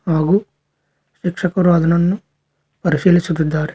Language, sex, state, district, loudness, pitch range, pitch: Kannada, male, Karnataka, Koppal, -17 LUFS, 165-185 Hz, 175 Hz